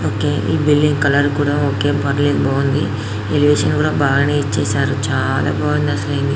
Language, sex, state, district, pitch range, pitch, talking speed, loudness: Telugu, female, Telangana, Karimnagar, 130-145 Hz, 140 Hz, 130 wpm, -16 LUFS